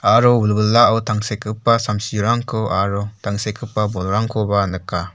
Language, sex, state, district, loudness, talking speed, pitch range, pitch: Garo, male, Meghalaya, South Garo Hills, -18 LUFS, 95 wpm, 100-115 Hz, 105 Hz